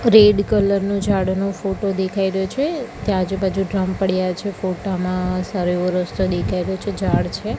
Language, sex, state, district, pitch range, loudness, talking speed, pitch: Gujarati, female, Gujarat, Gandhinagar, 185-200 Hz, -20 LUFS, 190 wpm, 190 Hz